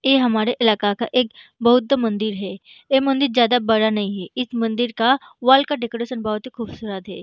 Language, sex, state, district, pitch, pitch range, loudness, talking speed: Hindi, female, Bihar, Gaya, 235 Hz, 215-250 Hz, -20 LUFS, 200 wpm